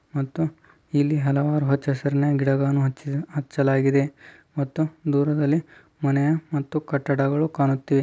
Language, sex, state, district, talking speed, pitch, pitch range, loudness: Kannada, male, Karnataka, Dharwad, 105 wpm, 140 Hz, 140-150 Hz, -23 LUFS